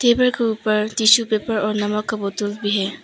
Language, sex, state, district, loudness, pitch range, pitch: Hindi, female, Arunachal Pradesh, Papum Pare, -19 LUFS, 210-225 Hz, 215 Hz